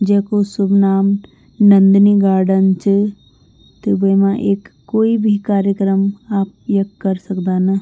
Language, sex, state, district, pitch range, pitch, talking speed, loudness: Garhwali, female, Uttarakhand, Tehri Garhwal, 195-205 Hz, 200 Hz, 130 wpm, -15 LUFS